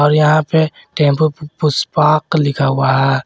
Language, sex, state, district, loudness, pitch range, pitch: Hindi, male, Jharkhand, Garhwa, -14 LUFS, 140-155 Hz, 150 Hz